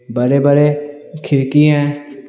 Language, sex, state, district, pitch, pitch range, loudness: Hindi, male, Bihar, Patna, 145 Hz, 140-150 Hz, -14 LUFS